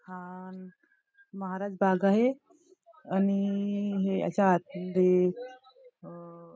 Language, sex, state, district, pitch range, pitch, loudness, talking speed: Marathi, female, Maharashtra, Nagpur, 185-255 Hz, 195 Hz, -28 LUFS, 80 wpm